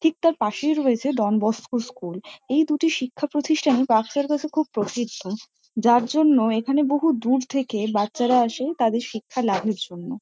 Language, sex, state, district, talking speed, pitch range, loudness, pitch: Bengali, female, West Bengal, Kolkata, 165 wpm, 220-290 Hz, -22 LUFS, 250 Hz